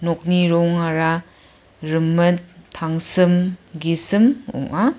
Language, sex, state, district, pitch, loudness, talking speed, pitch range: Garo, female, Meghalaya, West Garo Hills, 170 Hz, -17 LUFS, 60 wpm, 160-180 Hz